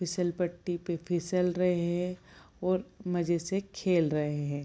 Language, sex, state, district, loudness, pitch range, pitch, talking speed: Hindi, female, Bihar, Gopalganj, -31 LUFS, 170-180 Hz, 175 Hz, 170 wpm